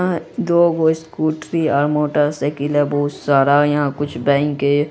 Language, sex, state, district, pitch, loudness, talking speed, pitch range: Hindi, female, Bihar, Araria, 145 Hz, -17 LUFS, 170 wpm, 145-160 Hz